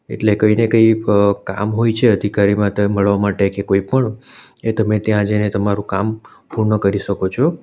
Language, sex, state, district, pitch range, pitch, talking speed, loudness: Gujarati, male, Gujarat, Valsad, 100-110 Hz, 105 Hz, 190 wpm, -16 LUFS